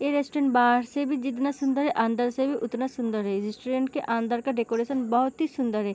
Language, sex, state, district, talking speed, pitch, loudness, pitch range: Hindi, female, Bihar, Gopalganj, 230 wpm, 255 Hz, -26 LUFS, 235-275 Hz